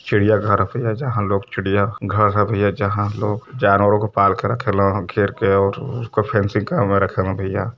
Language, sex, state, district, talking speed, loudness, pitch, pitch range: Hindi, male, Uttar Pradesh, Varanasi, 200 wpm, -19 LUFS, 105 Hz, 100-110 Hz